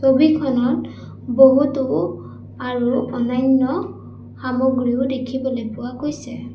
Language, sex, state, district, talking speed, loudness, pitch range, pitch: Assamese, female, Assam, Sonitpur, 75 wpm, -19 LUFS, 245-265 Hz, 255 Hz